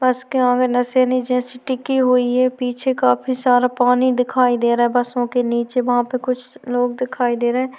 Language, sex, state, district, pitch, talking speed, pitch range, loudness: Hindi, female, Chhattisgarh, Korba, 250 Hz, 210 wpm, 245-255 Hz, -18 LUFS